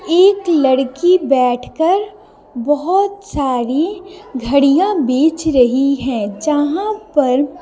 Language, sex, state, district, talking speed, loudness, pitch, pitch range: Hindi, female, Bihar, Patna, 85 wpm, -15 LUFS, 295 Hz, 260-370 Hz